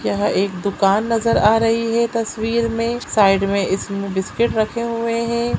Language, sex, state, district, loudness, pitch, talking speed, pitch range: Hindi, female, Chhattisgarh, Sukma, -18 LUFS, 225 Hz, 170 wpm, 200-230 Hz